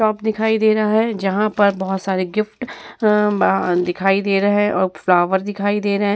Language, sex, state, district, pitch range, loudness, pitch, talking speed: Hindi, female, Bihar, Vaishali, 190-215 Hz, -18 LUFS, 205 Hz, 205 wpm